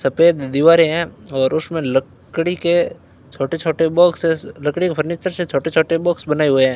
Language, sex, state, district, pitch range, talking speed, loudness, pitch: Hindi, male, Rajasthan, Bikaner, 140-170 Hz, 175 wpm, -17 LUFS, 165 Hz